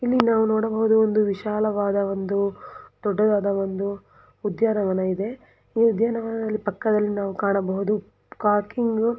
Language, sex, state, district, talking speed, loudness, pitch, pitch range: Kannada, female, Karnataka, Belgaum, 110 wpm, -23 LUFS, 210 Hz, 200-225 Hz